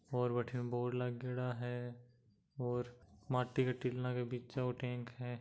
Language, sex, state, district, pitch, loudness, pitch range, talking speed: Marwari, male, Rajasthan, Nagaur, 125 Hz, -40 LUFS, 120-125 Hz, 155 wpm